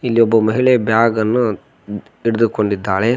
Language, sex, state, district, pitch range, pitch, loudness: Kannada, male, Karnataka, Koppal, 110-115 Hz, 115 Hz, -16 LUFS